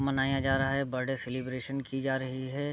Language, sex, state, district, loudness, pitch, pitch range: Hindi, male, Bihar, Sitamarhi, -32 LUFS, 135 Hz, 130-135 Hz